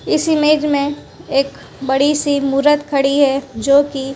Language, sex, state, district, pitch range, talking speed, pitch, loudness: Hindi, female, Gujarat, Valsad, 275-295 Hz, 175 wpm, 280 Hz, -15 LUFS